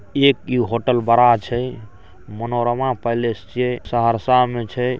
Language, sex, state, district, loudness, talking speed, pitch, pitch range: Maithili, male, Bihar, Saharsa, -19 LUFS, 155 wpm, 120 Hz, 115-125 Hz